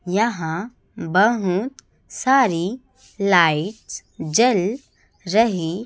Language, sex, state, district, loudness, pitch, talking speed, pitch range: Hindi, female, Chhattisgarh, Raipur, -20 LUFS, 200 Hz, 60 wpm, 175-235 Hz